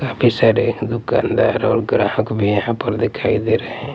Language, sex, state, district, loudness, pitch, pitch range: Hindi, male, Punjab, Pathankot, -17 LUFS, 110 Hz, 105-115 Hz